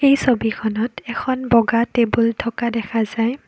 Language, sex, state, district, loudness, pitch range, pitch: Assamese, female, Assam, Kamrup Metropolitan, -19 LUFS, 225-250 Hz, 235 Hz